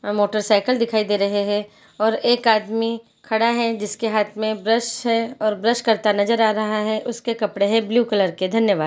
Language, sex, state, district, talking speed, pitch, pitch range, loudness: Hindi, female, Chhattisgarh, Bilaspur, 205 wpm, 220 Hz, 210-230 Hz, -20 LUFS